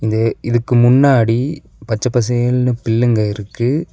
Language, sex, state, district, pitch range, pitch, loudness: Tamil, male, Tamil Nadu, Nilgiris, 115-125 Hz, 120 Hz, -15 LUFS